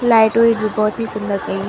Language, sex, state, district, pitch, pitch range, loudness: Garhwali, female, Uttarakhand, Tehri Garhwal, 215 Hz, 210-230 Hz, -16 LUFS